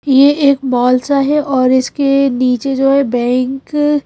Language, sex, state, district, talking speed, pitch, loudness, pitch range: Hindi, female, Madhya Pradesh, Bhopal, 175 wpm, 270 Hz, -13 LUFS, 255-280 Hz